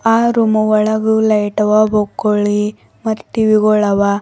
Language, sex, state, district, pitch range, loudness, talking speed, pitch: Kannada, female, Karnataka, Bidar, 210-220 Hz, -14 LUFS, 115 wpm, 215 Hz